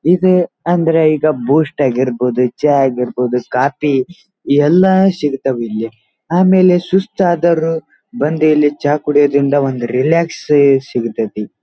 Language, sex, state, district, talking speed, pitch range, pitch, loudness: Kannada, male, Karnataka, Dharwad, 105 wpm, 130-170 Hz, 145 Hz, -14 LUFS